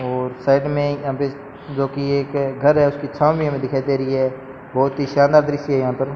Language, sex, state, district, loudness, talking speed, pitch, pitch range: Hindi, male, Rajasthan, Bikaner, -19 LUFS, 235 wpm, 140 Hz, 135-145 Hz